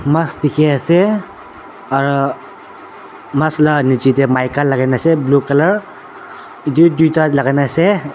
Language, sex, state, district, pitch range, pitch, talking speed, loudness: Nagamese, male, Nagaland, Dimapur, 130-155 Hz, 140 Hz, 130 wpm, -14 LUFS